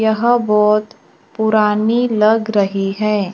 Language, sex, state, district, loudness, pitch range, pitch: Hindi, male, Maharashtra, Gondia, -15 LUFS, 210-220 Hz, 215 Hz